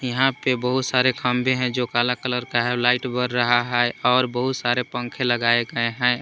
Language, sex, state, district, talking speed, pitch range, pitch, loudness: Hindi, male, Jharkhand, Palamu, 210 wpm, 120-125 Hz, 125 Hz, -21 LUFS